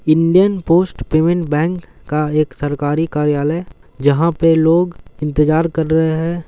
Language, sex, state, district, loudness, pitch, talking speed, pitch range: Hindi, male, Bihar, Gaya, -16 LUFS, 160 Hz, 120 wpm, 150-170 Hz